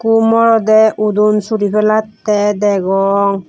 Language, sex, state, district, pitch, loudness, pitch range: Chakma, female, Tripura, West Tripura, 210 Hz, -12 LUFS, 205-220 Hz